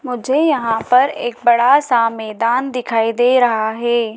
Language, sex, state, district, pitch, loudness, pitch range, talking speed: Hindi, female, Madhya Pradesh, Dhar, 240 Hz, -15 LUFS, 230-255 Hz, 160 wpm